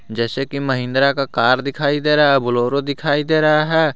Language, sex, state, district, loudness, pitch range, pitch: Hindi, male, Jharkhand, Garhwa, -17 LUFS, 130-150 Hz, 140 Hz